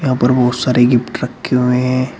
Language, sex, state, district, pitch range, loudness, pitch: Hindi, male, Uttar Pradesh, Shamli, 125-130 Hz, -14 LUFS, 125 Hz